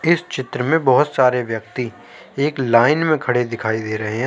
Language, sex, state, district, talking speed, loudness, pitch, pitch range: Hindi, male, Uttar Pradesh, Jalaun, 195 wpm, -18 LUFS, 125 Hz, 115-150 Hz